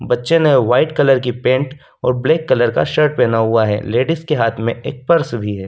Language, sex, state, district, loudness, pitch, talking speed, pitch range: Hindi, male, Delhi, New Delhi, -15 LUFS, 130 Hz, 230 wpm, 115-150 Hz